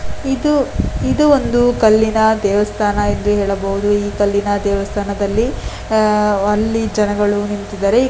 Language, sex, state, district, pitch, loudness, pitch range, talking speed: Kannada, female, Karnataka, Dakshina Kannada, 205 Hz, -16 LUFS, 205-220 Hz, 105 wpm